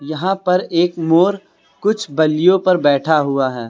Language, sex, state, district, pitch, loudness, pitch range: Hindi, male, Uttar Pradesh, Lucknow, 165 Hz, -16 LUFS, 150-185 Hz